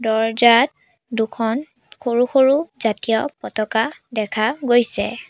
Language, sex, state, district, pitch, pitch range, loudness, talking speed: Assamese, female, Assam, Sonitpur, 230 Hz, 225-250 Hz, -19 LUFS, 90 wpm